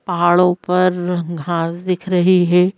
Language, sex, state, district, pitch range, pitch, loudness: Hindi, female, Madhya Pradesh, Bhopal, 175-180 Hz, 180 Hz, -16 LUFS